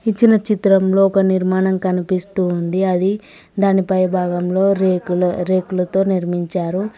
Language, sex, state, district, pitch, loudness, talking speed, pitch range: Telugu, female, Telangana, Mahabubabad, 185 Hz, -17 LUFS, 110 wpm, 180-195 Hz